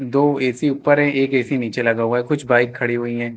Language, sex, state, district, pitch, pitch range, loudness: Hindi, male, Uttar Pradesh, Lucknow, 130 Hz, 120-140 Hz, -18 LUFS